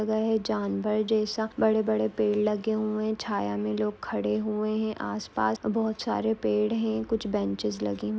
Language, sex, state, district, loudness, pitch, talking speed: Hindi, female, Maharashtra, Aurangabad, -28 LUFS, 205 Hz, 155 wpm